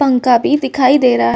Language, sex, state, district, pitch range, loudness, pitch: Hindi, female, Uttar Pradesh, Varanasi, 245-280 Hz, -12 LUFS, 255 Hz